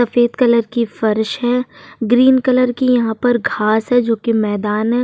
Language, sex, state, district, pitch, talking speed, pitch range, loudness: Hindi, female, Uttar Pradesh, Jyotiba Phule Nagar, 240 Hz, 190 wpm, 220-245 Hz, -15 LUFS